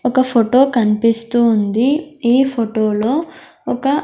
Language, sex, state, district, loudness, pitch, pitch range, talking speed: Telugu, female, Andhra Pradesh, Sri Satya Sai, -15 LUFS, 240 Hz, 230-270 Hz, 105 wpm